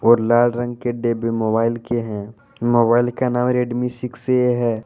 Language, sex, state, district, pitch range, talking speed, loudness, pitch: Hindi, male, Jharkhand, Deoghar, 115-120 Hz, 185 wpm, -19 LUFS, 120 Hz